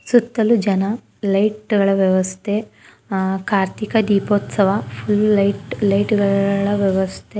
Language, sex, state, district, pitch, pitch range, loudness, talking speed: Kannada, female, Karnataka, Dharwad, 200 Hz, 195-210 Hz, -18 LUFS, 95 wpm